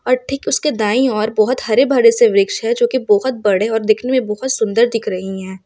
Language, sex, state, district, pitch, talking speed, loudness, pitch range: Hindi, female, Jharkhand, Sahebganj, 240 Hz, 245 wpm, -15 LUFS, 215-260 Hz